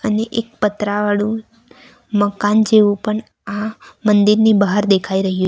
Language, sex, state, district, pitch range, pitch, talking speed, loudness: Gujarati, female, Gujarat, Valsad, 205-220 Hz, 210 Hz, 120 wpm, -16 LUFS